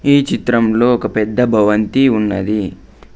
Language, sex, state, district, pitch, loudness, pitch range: Telugu, male, Andhra Pradesh, Sri Satya Sai, 110 Hz, -14 LUFS, 105-125 Hz